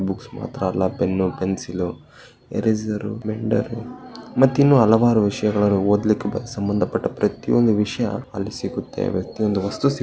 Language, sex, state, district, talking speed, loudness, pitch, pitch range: Kannada, male, Karnataka, Bellary, 120 wpm, -21 LUFS, 105 Hz, 100-115 Hz